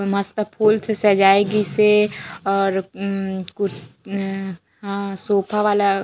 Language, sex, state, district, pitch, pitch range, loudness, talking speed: Chhattisgarhi, female, Chhattisgarh, Raigarh, 200 Hz, 195-210 Hz, -19 LUFS, 130 wpm